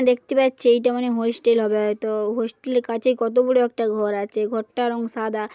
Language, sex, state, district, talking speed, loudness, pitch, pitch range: Bengali, female, West Bengal, Jhargram, 205 wpm, -21 LUFS, 230 Hz, 220-245 Hz